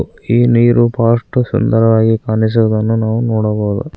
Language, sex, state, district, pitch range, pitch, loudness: Kannada, male, Karnataka, Koppal, 110-120 Hz, 115 Hz, -13 LUFS